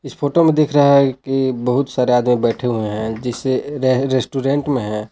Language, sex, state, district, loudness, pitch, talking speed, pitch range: Hindi, male, Jharkhand, Palamu, -17 LUFS, 130 Hz, 200 wpm, 120-140 Hz